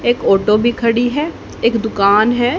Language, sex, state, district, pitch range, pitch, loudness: Hindi, female, Haryana, Jhajjar, 215-240 Hz, 235 Hz, -15 LUFS